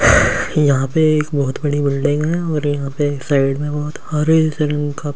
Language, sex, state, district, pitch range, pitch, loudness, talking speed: Hindi, male, Delhi, New Delhi, 145-155 Hz, 145 Hz, -17 LUFS, 245 wpm